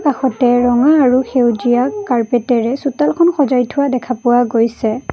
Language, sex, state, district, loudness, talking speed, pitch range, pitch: Assamese, female, Assam, Kamrup Metropolitan, -14 LUFS, 140 wpm, 240-275 Hz, 250 Hz